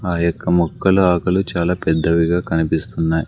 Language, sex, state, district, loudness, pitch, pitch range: Telugu, male, Andhra Pradesh, Sri Satya Sai, -17 LUFS, 85 Hz, 80-90 Hz